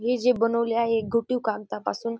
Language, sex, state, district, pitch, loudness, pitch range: Marathi, female, Maharashtra, Dhule, 230 Hz, -25 LUFS, 220-235 Hz